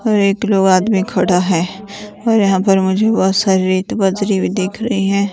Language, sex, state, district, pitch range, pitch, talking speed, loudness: Hindi, female, Himachal Pradesh, Shimla, 190-205 Hz, 195 Hz, 190 wpm, -15 LUFS